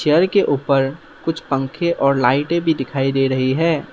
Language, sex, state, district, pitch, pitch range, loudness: Hindi, male, Assam, Sonitpur, 140 Hz, 135-165 Hz, -18 LUFS